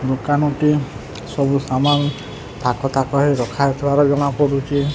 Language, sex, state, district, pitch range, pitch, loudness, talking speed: Odia, male, Odisha, Sambalpur, 135-145 Hz, 140 Hz, -18 LUFS, 135 wpm